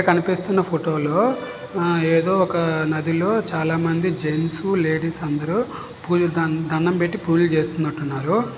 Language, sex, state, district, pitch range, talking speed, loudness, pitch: Telugu, male, Telangana, Nalgonda, 160-180 Hz, 135 wpm, -21 LUFS, 165 Hz